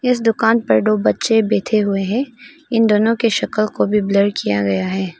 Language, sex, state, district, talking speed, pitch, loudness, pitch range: Hindi, female, Arunachal Pradesh, Lower Dibang Valley, 205 wpm, 215 Hz, -17 LUFS, 190-230 Hz